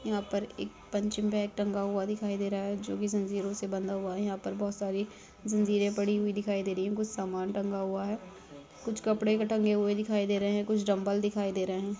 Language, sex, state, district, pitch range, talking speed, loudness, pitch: Hindi, male, Rajasthan, Churu, 195-210 Hz, 240 wpm, -32 LUFS, 205 Hz